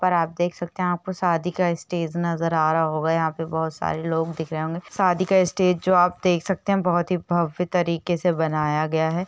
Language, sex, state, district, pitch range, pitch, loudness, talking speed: Hindi, female, Uttar Pradesh, Jalaun, 160-180 Hz, 175 Hz, -23 LUFS, 245 wpm